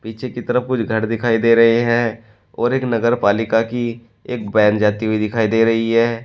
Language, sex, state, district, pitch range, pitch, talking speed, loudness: Hindi, male, Uttar Pradesh, Shamli, 110-120 Hz, 115 Hz, 210 wpm, -17 LUFS